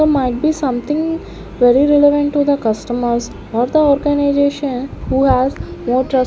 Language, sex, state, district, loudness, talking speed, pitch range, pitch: English, female, Chandigarh, Chandigarh, -15 LUFS, 155 wpm, 245-290 Hz, 275 Hz